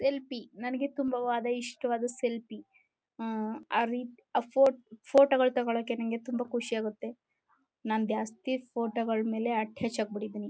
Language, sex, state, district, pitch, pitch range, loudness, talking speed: Kannada, female, Karnataka, Chamarajanagar, 235 Hz, 225-250 Hz, -31 LUFS, 155 wpm